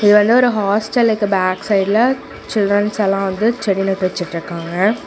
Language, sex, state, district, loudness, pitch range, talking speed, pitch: Tamil, female, Tamil Nadu, Namakkal, -16 LUFS, 190-220 Hz, 155 wpm, 205 Hz